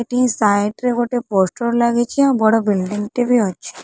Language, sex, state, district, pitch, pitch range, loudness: Odia, female, Odisha, Khordha, 235 Hz, 205-245 Hz, -17 LUFS